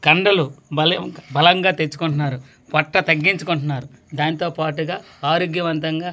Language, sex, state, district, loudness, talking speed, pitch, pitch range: Telugu, male, Andhra Pradesh, Manyam, -19 LUFS, 110 wpm, 160 Hz, 150-175 Hz